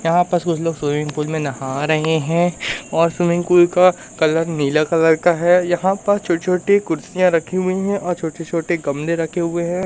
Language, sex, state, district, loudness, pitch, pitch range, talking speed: Hindi, male, Madhya Pradesh, Umaria, -18 LUFS, 170 Hz, 160-180 Hz, 195 wpm